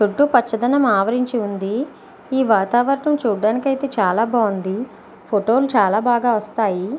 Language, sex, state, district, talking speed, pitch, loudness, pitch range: Telugu, female, Andhra Pradesh, Visakhapatnam, 120 wpm, 230 Hz, -18 LUFS, 210-260 Hz